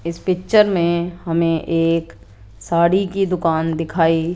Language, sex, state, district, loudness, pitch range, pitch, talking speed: Hindi, female, Rajasthan, Jaipur, -18 LUFS, 165-175 Hz, 170 Hz, 125 wpm